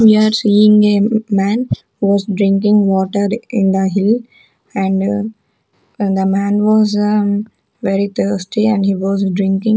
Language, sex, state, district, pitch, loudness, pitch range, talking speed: English, female, Chandigarh, Chandigarh, 205 Hz, -14 LUFS, 195-215 Hz, 140 wpm